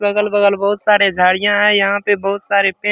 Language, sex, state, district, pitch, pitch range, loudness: Hindi, male, Bihar, Supaul, 205 Hz, 200-205 Hz, -14 LUFS